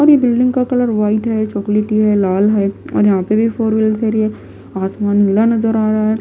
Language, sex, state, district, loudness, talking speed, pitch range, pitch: Hindi, female, Himachal Pradesh, Shimla, -15 LUFS, 230 wpm, 205-225 Hz, 215 Hz